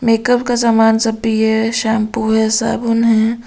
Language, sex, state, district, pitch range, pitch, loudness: Hindi, female, Bihar, Katihar, 220-230 Hz, 225 Hz, -14 LUFS